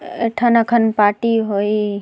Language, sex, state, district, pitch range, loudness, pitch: Sadri, female, Chhattisgarh, Jashpur, 210-235 Hz, -16 LUFS, 225 Hz